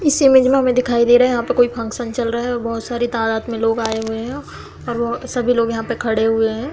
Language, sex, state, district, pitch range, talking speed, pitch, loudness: Hindi, female, Bihar, Samastipur, 225-245 Hz, 250 wpm, 235 Hz, -17 LUFS